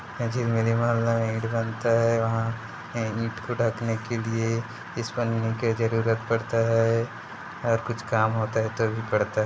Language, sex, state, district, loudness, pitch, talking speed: Hindi, male, Chhattisgarh, Bilaspur, -26 LUFS, 115 Hz, 150 wpm